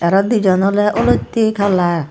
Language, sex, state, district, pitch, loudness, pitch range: Chakma, female, Tripura, Dhalai, 200 Hz, -15 LUFS, 185-215 Hz